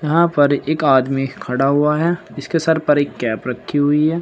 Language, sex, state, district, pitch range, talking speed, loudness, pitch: Hindi, male, Uttar Pradesh, Saharanpur, 135-160 Hz, 215 wpm, -17 LUFS, 145 Hz